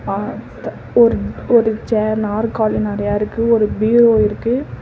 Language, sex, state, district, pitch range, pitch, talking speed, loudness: Tamil, female, Tamil Nadu, Namakkal, 215-230 Hz, 220 Hz, 125 wpm, -16 LUFS